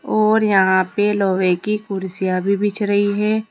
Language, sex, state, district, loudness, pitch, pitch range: Hindi, female, Uttar Pradesh, Saharanpur, -18 LUFS, 205 Hz, 190-210 Hz